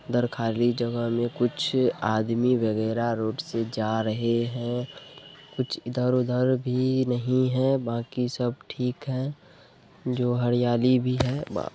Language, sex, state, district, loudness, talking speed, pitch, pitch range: Hindi, male, Bihar, Purnia, -26 LUFS, 130 wpm, 125 Hz, 120-130 Hz